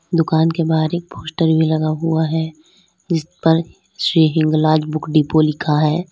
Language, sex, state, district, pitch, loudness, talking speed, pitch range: Hindi, female, Uttar Pradesh, Lalitpur, 160 Hz, -17 LUFS, 165 wpm, 155-165 Hz